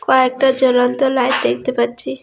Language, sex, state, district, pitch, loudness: Bengali, female, West Bengal, Alipurduar, 255 Hz, -16 LUFS